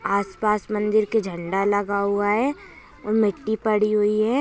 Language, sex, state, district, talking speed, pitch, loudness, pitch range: Hindi, male, Maharashtra, Nagpur, 165 wpm, 210 Hz, -22 LUFS, 200-220 Hz